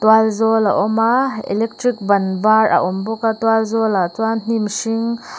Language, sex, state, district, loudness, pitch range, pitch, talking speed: Mizo, female, Mizoram, Aizawl, -17 LUFS, 210-225 Hz, 220 Hz, 200 wpm